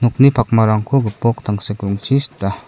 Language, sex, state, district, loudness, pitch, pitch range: Garo, male, Meghalaya, South Garo Hills, -16 LUFS, 115 Hz, 105-125 Hz